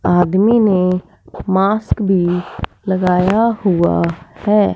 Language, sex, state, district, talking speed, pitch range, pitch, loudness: Hindi, female, Punjab, Fazilka, 90 wpm, 180-205 Hz, 190 Hz, -15 LUFS